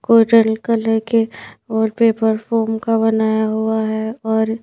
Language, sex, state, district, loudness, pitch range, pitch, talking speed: Hindi, female, Madhya Pradesh, Bhopal, -17 LUFS, 220-230 Hz, 225 Hz, 145 wpm